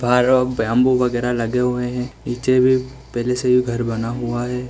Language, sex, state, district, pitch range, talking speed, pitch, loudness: Hindi, male, Bihar, East Champaran, 120-125 Hz, 205 wpm, 125 Hz, -19 LUFS